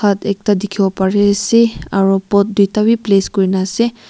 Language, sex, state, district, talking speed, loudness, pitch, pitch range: Nagamese, female, Nagaland, Kohima, 190 wpm, -14 LUFS, 200 Hz, 195-210 Hz